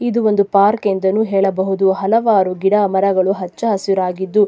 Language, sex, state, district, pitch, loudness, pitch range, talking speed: Kannada, female, Karnataka, Dakshina Kannada, 195 Hz, -16 LUFS, 190-210 Hz, 135 wpm